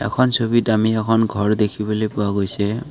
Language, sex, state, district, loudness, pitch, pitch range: Assamese, male, Assam, Kamrup Metropolitan, -19 LUFS, 110 Hz, 105-115 Hz